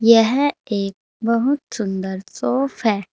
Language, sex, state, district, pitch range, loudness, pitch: Hindi, female, Uttar Pradesh, Saharanpur, 200-260 Hz, -20 LUFS, 230 Hz